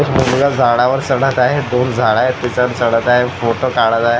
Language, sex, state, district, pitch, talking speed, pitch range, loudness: Marathi, male, Maharashtra, Gondia, 125 Hz, 185 wpm, 120-130 Hz, -14 LUFS